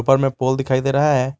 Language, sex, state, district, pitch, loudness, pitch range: Hindi, male, Jharkhand, Garhwa, 135 Hz, -18 LUFS, 130-135 Hz